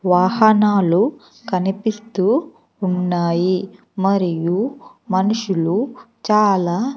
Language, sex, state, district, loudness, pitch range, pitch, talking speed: Telugu, female, Andhra Pradesh, Sri Satya Sai, -18 LUFS, 180-220 Hz, 195 Hz, 50 wpm